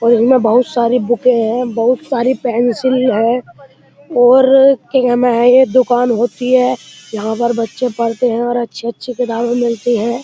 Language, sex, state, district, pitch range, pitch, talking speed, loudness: Hindi, male, Uttar Pradesh, Muzaffarnagar, 235-250 Hz, 245 Hz, 140 wpm, -13 LUFS